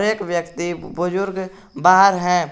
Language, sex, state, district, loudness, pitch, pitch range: Hindi, male, Jharkhand, Garhwa, -18 LUFS, 180 Hz, 175-195 Hz